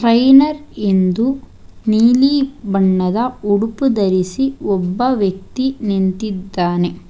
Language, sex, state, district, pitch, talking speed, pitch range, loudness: Kannada, female, Karnataka, Bangalore, 215 Hz, 75 wpm, 190-255 Hz, -16 LUFS